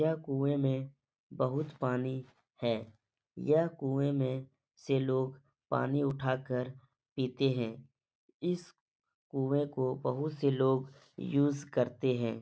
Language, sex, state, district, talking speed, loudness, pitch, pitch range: Hindi, male, Bihar, Supaul, 120 wpm, -33 LUFS, 135 Hz, 130-140 Hz